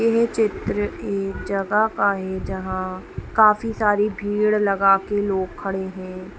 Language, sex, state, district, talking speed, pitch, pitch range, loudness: Hindi, female, Bihar, Saharsa, 140 wpm, 200 Hz, 190-210 Hz, -21 LUFS